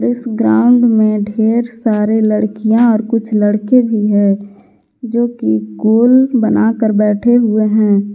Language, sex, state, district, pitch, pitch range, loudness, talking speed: Hindi, female, Jharkhand, Garhwa, 220 Hz, 210-235 Hz, -12 LUFS, 130 wpm